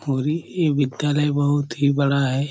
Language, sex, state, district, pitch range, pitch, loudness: Hindi, male, Chhattisgarh, Korba, 140-150 Hz, 145 Hz, -21 LUFS